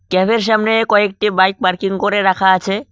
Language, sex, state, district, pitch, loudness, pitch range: Bengali, male, West Bengal, Cooch Behar, 195 Hz, -14 LUFS, 190-215 Hz